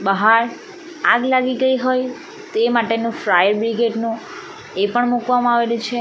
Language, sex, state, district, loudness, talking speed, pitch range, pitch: Gujarati, female, Gujarat, Valsad, -18 LUFS, 140 wpm, 230-260 Hz, 240 Hz